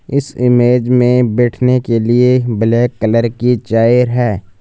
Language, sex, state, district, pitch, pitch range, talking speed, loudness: Hindi, male, Punjab, Fazilka, 120 Hz, 115-125 Hz, 145 wpm, -12 LUFS